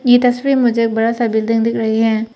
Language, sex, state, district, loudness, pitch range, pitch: Hindi, female, Arunachal Pradesh, Papum Pare, -15 LUFS, 225-245 Hz, 230 Hz